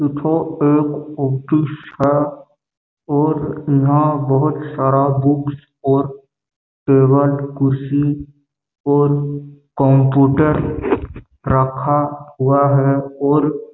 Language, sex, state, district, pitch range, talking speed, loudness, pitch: Hindi, male, Chhattisgarh, Bastar, 140-145 Hz, 85 wpm, -16 LUFS, 145 Hz